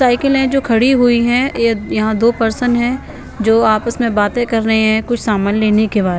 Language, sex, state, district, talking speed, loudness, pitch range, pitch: Hindi, female, Bihar, Patna, 225 wpm, -14 LUFS, 220-245 Hz, 230 Hz